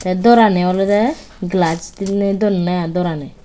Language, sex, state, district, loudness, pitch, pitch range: Chakma, female, Tripura, West Tripura, -16 LUFS, 185 Hz, 180-205 Hz